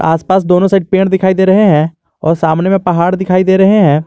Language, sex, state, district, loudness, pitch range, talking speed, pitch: Hindi, male, Jharkhand, Garhwa, -11 LUFS, 165-190 Hz, 235 wpm, 185 Hz